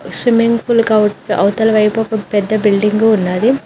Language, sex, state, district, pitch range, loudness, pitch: Telugu, female, Telangana, Mahabubabad, 210-230 Hz, -13 LUFS, 215 Hz